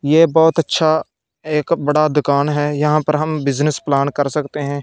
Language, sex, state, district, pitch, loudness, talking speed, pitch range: Hindi, male, Punjab, Fazilka, 150 Hz, -16 LUFS, 185 wpm, 145-155 Hz